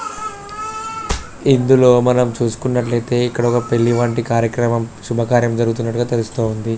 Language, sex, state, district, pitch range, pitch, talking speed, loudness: Telugu, male, Telangana, Karimnagar, 115-125 Hz, 120 Hz, 90 wpm, -17 LUFS